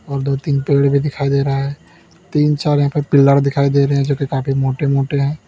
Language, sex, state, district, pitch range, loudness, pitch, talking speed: Hindi, male, Uttar Pradesh, Lalitpur, 140-145 Hz, -16 LUFS, 140 Hz, 250 wpm